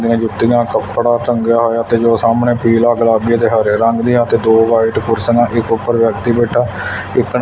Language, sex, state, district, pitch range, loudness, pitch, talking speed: Punjabi, male, Punjab, Fazilka, 115-120 Hz, -13 LUFS, 115 Hz, 195 wpm